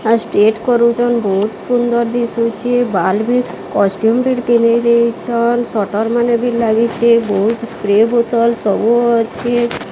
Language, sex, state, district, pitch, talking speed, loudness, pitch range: Odia, female, Odisha, Sambalpur, 235 Hz, 125 wpm, -14 LUFS, 220-240 Hz